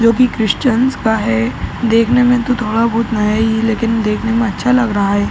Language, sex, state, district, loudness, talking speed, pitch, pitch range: Hindi, male, Uttar Pradesh, Ghazipur, -14 LUFS, 205 wpm, 225 Hz, 215-235 Hz